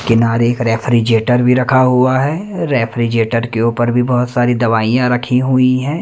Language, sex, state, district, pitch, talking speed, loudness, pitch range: Hindi, male, Madhya Pradesh, Umaria, 125 Hz, 170 wpm, -14 LUFS, 115-130 Hz